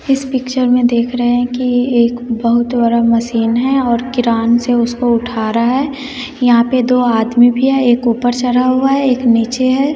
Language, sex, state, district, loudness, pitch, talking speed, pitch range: Hindi, female, Bihar, West Champaran, -13 LUFS, 245 Hz, 200 wpm, 235-255 Hz